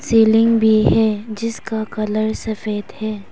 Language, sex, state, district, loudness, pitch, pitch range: Hindi, female, Arunachal Pradesh, Papum Pare, -18 LUFS, 220 Hz, 215-225 Hz